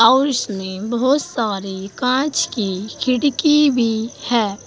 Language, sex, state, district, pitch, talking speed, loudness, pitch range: Hindi, female, Uttar Pradesh, Saharanpur, 235 Hz, 115 wpm, -18 LUFS, 205-265 Hz